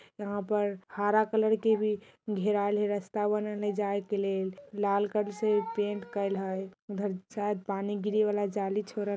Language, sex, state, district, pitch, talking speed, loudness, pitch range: Bajjika, female, Bihar, Vaishali, 205 Hz, 175 wpm, -31 LUFS, 200-210 Hz